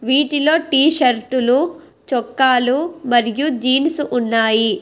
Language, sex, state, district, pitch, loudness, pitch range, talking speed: Telugu, female, Telangana, Hyderabad, 260 Hz, -16 LUFS, 245-295 Hz, 85 wpm